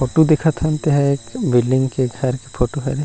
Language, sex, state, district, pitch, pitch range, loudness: Chhattisgarhi, male, Chhattisgarh, Rajnandgaon, 135 Hz, 130-150 Hz, -18 LUFS